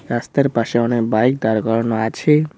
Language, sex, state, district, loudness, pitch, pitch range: Bengali, male, West Bengal, Cooch Behar, -18 LUFS, 120 Hz, 115-140 Hz